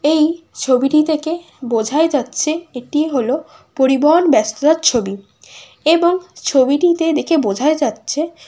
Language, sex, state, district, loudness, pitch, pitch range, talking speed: Bengali, female, West Bengal, Kolkata, -16 LUFS, 305 Hz, 265-320 Hz, 115 wpm